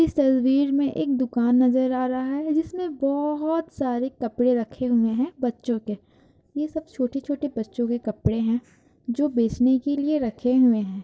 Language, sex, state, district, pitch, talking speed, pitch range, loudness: Hindi, female, Bihar, Kishanganj, 255 Hz, 175 wpm, 240-285 Hz, -24 LUFS